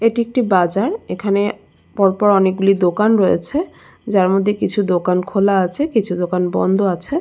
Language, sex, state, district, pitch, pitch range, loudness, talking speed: Bengali, female, West Bengal, Jalpaiguri, 200 Hz, 185-215 Hz, -17 LUFS, 160 wpm